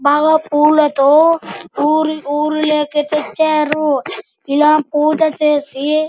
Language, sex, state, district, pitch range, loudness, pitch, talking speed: Telugu, male, Andhra Pradesh, Anantapur, 295-310 Hz, -14 LUFS, 300 Hz, 70 wpm